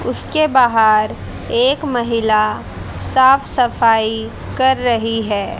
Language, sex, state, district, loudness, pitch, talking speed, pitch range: Hindi, female, Haryana, Jhajjar, -15 LUFS, 235 Hz, 95 wpm, 220-260 Hz